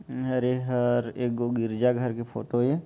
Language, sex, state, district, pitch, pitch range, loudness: Chhattisgarhi, male, Chhattisgarh, Jashpur, 125 Hz, 120-125 Hz, -27 LUFS